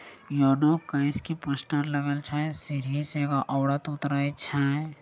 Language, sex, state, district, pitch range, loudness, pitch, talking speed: Angika, female, Bihar, Begusarai, 140-150 Hz, -27 LUFS, 145 Hz, 165 wpm